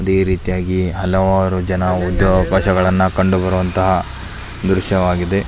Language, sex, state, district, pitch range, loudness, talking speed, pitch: Kannada, male, Karnataka, Belgaum, 90-95 Hz, -16 LUFS, 110 wpm, 95 Hz